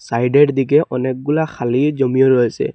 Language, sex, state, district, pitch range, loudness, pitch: Bengali, male, Assam, Hailakandi, 125-145 Hz, -16 LUFS, 135 Hz